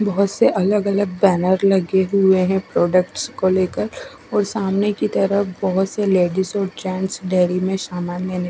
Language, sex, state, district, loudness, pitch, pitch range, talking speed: Hindi, female, Odisha, Khordha, -19 LUFS, 190 Hz, 185-200 Hz, 160 wpm